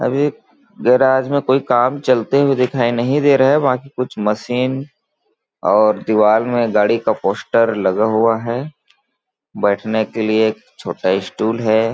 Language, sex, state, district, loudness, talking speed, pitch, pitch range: Hindi, male, Chhattisgarh, Balrampur, -16 LUFS, 160 wpm, 120 Hz, 110-130 Hz